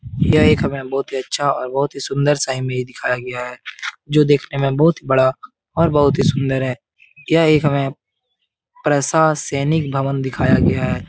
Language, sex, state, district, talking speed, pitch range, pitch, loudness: Hindi, male, Bihar, Jahanabad, 190 wpm, 130-150 Hz, 140 Hz, -18 LUFS